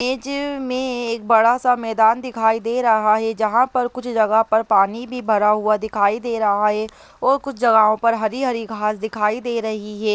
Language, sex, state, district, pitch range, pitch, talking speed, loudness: Hindi, female, Bihar, Jahanabad, 215-245 Hz, 225 Hz, 190 wpm, -19 LUFS